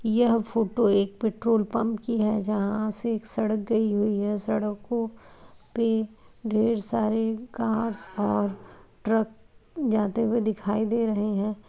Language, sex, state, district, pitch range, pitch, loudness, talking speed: Hindi, female, Uttar Pradesh, Etah, 210-225 Hz, 220 Hz, -26 LUFS, 140 wpm